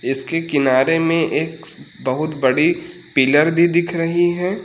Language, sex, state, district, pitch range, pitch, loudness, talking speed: Hindi, male, Uttar Pradesh, Lucknow, 140-175 Hz, 165 Hz, -17 LUFS, 140 wpm